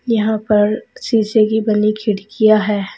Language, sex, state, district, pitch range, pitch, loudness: Hindi, female, Uttar Pradesh, Saharanpur, 210-220 Hz, 215 Hz, -16 LUFS